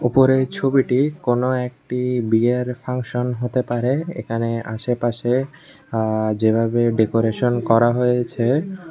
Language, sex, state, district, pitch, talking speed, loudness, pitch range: Bengali, male, Tripura, West Tripura, 125 Hz, 100 wpm, -20 LUFS, 115-130 Hz